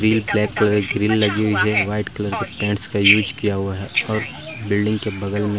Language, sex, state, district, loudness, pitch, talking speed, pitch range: Hindi, male, Bihar, Vaishali, -19 LUFS, 105 Hz, 235 wpm, 100-110 Hz